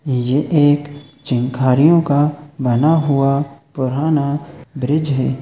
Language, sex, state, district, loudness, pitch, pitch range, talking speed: Hindi, male, Chhattisgarh, Raigarh, -16 LUFS, 140 Hz, 130-150 Hz, 100 wpm